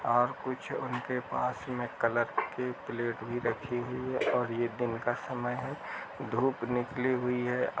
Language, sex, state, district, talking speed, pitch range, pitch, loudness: Hindi, male, Uttar Pradesh, Jalaun, 175 wpm, 120-125 Hz, 125 Hz, -33 LUFS